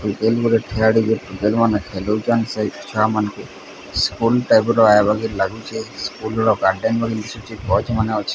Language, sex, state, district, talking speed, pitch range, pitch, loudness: Odia, male, Odisha, Sambalpur, 95 wpm, 105-115 Hz, 110 Hz, -19 LUFS